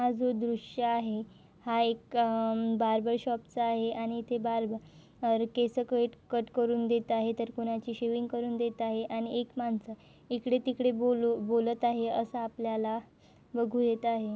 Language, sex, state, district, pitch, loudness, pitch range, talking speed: Marathi, female, Maharashtra, Nagpur, 235 Hz, -31 LUFS, 225-240 Hz, 165 wpm